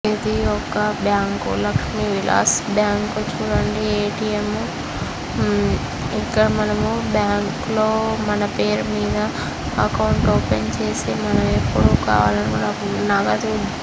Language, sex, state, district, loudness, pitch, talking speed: Telugu, female, Andhra Pradesh, Chittoor, -20 LUFS, 110 Hz, 115 wpm